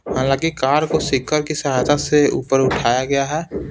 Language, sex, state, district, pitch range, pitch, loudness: Hindi, male, Bihar, Patna, 135-155 Hz, 145 Hz, -18 LUFS